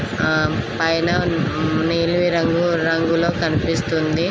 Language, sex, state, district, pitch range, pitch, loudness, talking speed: Telugu, female, Andhra Pradesh, Krishna, 155-170 Hz, 165 Hz, -19 LUFS, 85 wpm